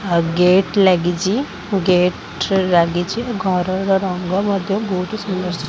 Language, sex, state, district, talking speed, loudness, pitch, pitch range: Odia, female, Odisha, Khordha, 135 wpm, -18 LUFS, 185 Hz, 180-195 Hz